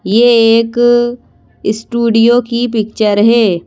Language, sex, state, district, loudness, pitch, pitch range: Hindi, female, Madhya Pradesh, Bhopal, -11 LUFS, 230 Hz, 220-240 Hz